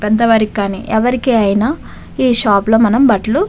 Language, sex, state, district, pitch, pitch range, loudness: Telugu, female, Andhra Pradesh, Visakhapatnam, 220 Hz, 210-245 Hz, -13 LUFS